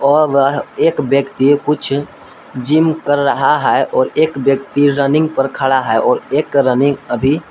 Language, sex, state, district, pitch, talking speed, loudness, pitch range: Hindi, male, Jharkhand, Palamu, 140 Hz, 160 wpm, -14 LUFS, 135-145 Hz